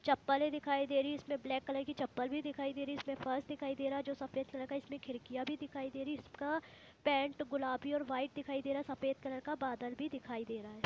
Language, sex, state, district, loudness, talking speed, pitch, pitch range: Hindi, female, Jharkhand, Jamtara, -39 LUFS, 275 wpm, 275 Hz, 265-285 Hz